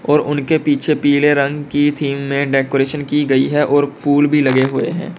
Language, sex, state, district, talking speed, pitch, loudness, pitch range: Hindi, male, Uttar Pradesh, Lalitpur, 195 wpm, 145 Hz, -15 LUFS, 140-150 Hz